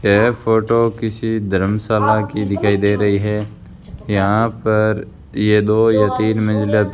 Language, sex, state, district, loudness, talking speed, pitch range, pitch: Hindi, male, Rajasthan, Bikaner, -16 LUFS, 145 wpm, 100-110 Hz, 105 Hz